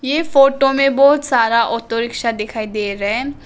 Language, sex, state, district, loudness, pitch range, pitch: Hindi, female, Arunachal Pradesh, Papum Pare, -16 LUFS, 230-275 Hz, 240 Hz